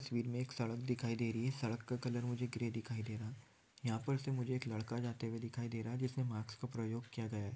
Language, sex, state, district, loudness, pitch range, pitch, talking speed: Hindi, male, West Bengal, Jhargram, -42 LUFS, 115-125 Hz, 120 Hz, 285 wpm